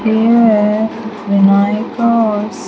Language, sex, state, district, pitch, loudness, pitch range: English, female, Andhra Pradesh, Sri Satya Sai, 220 Hz, -13 LUFS, 210-225 Hz